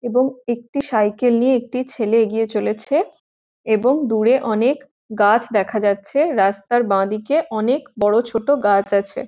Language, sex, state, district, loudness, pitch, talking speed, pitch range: Bengali, female, West Bengal, Jhargram, -18 LUFS, 230 Hz, 140 wpm, 210-260 Hz